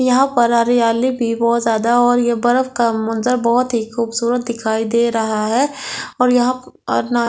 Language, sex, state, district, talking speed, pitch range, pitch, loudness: Hindi, female, Delhi, New Delhi, 190 wpm, 230-250 Hz, 235 Hz, -16 LUFS